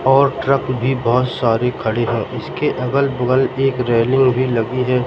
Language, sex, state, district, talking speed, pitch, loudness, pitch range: Hindi, male, Madhya Pradesh, Katni, 175 wpm, 130 Hz, -17 LUFS, 125-135 Hz